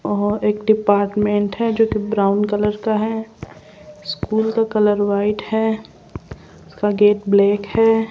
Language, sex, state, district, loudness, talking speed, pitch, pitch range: Hindi, female, Rajasthan, Jaipur, -18 LUFS, 140 wpm, 210 Hz, 205-220 Hz